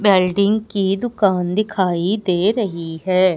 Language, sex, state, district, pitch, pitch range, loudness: Hindi, female, Madhya Pradesh, Umaria, 195 Hz, 180-210 Hz, -18 LUFS